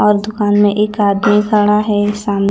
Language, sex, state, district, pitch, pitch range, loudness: Hindi, female, Chandigarh, Chandigarh, 205 Hz, 205-210 Hz, -13 LUFS